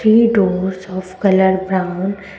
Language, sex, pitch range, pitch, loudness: English, female, 185-200 Hz, 190 Hz, -16 LUFS